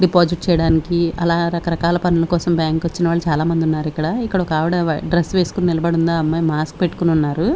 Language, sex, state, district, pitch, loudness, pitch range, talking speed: Telugu, female, Andhra Pradesh, Sri Satya Sai, 170 Hz, -18 LUFS, 160-175 Hz, 215 wpm